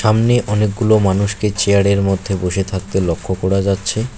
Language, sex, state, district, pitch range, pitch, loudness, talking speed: Bengali, male, West Bengal, Alipurduar, 95-105 Hz, 100 Hz, -16 LUFS, 145 wpm